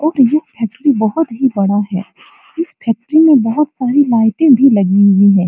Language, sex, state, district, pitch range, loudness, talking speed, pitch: Hindi, female, Bihar, Supaul, 210-305 Hz, -12 LUFS, 185 wpm, 255 Hz